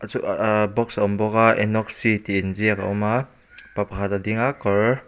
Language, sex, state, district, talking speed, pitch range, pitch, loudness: Mizo, male, Mizoram, Aizawl, 225 wpm, 100-115 Hz, 105 Hz, -22 LUFS